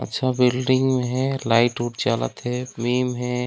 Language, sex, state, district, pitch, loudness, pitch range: Chhattisgarhi, male, Chhattisgarh, Raigarh, 125 Hz, -22 LUFS, 120-130 Hz